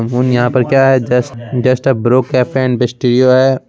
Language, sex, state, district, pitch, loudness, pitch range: Hindi, male, Bihar, Begusarai, 125 Hz, -12 LUFS, 125-130 Hz